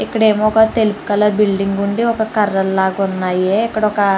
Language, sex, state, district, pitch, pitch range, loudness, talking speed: Telugu, female, Andhra Pradesh, Chittoor, 210 Hz, 195-220 Hz, -15 LUFS, 200 wpm